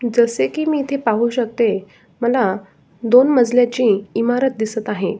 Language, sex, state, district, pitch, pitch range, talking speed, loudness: Marathi, female, Maharashtra, Sindhudurg, 235 Hz, 205-245 Hz, 140 wpm, -17 LUFS